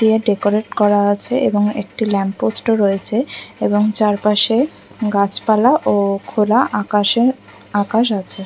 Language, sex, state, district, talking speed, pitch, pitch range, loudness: Bengali, female, West Bengal, Kolkata, 130 wpm, 210 Hz, 205-225 Hz, -16 LUFS